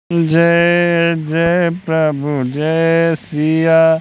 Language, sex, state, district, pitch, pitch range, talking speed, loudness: Hindi, male, Madhya Pradesh, Katni, 165 Hz, 160-170 Hz, 75 wpm, -14 LUFS